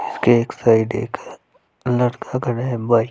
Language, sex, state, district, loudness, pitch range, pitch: Hindi, male, Punjab, Fazilka, -19 LUFS, 115-125 Hz, 120 Hz